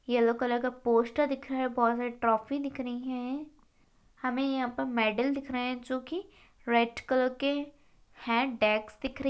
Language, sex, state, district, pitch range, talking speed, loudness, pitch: Hindi, female, Rajasthan, Churu, 235-270 Hz, 195 wpm, -30 LUFS, 255 Hz